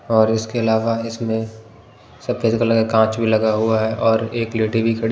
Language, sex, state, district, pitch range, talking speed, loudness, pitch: Hindi, male, Punjab, Pathankot, 110-115 Hz, 200 wpm, -19 LUFS, 115 Hz